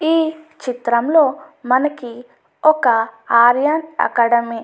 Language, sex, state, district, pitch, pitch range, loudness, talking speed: Telugu, female, Andhra Pradesh, Anantapur, 255 Hz, 235-310 Hz, -16 LUFS, 90 wpm